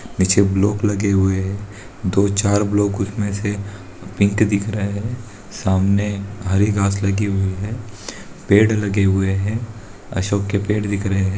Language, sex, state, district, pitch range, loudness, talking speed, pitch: Hindi, male, Bihar, Madhepura, 100-105 Hz, -19 LUFS, 160 wpm, 100 Hz